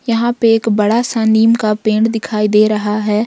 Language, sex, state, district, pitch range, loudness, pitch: Hindi, female, Jharkhand, Ranchi, 215-225 Hz, -13 LUFS, 220 Hz